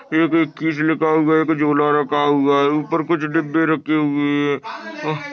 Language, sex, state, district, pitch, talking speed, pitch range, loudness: Hindi, male, Maharashtra, Sindhudurg, 155 Hz, 190 wpm, 145-160 Hz, -18 LUFS